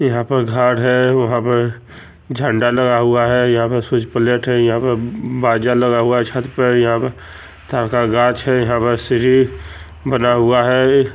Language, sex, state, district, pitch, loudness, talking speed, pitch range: Magahi, male, Bihar, Jamui, 120 Hz, -15 LUFS, 185 wpm, 120-125 Hz